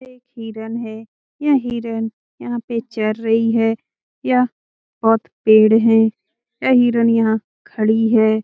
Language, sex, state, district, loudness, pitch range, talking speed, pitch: Hindi, female, Bihar, Jamui, -17 LUFS, 220-240 Hz, 140 wpm, 225 Hz